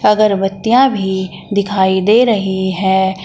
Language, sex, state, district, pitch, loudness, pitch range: Hindi, female, Uttar Pradesh, Shamli, 195 Hz, -14 LUFS, 190-210 Hz